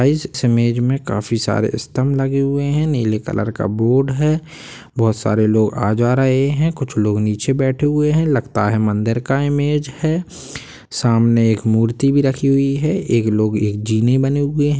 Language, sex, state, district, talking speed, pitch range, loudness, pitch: Hindi, male, Bihar, Sitamarhi, 190 wpm, 110-140 Hz, -17 LUFS, 130 Hz